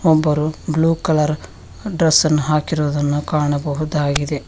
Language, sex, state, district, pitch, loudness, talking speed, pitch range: Kannada, female, Karnataka, Bangalore, 150 Hz, -18 LUFS, 80 wpm, 145-160 Hz